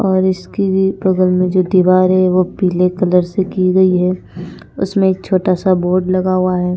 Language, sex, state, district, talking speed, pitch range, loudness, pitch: Hindi, female, Punjab, Pathankot, 185 wpm, 180-190 Hz, -14 LUFS, 185 Hz